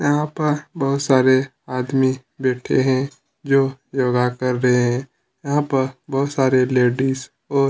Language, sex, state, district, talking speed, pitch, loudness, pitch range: Hindi, male, Chhattisgarh, Kabirdham, 140 wpm, 130 Hz, -20 LUFS, 130-140 Hz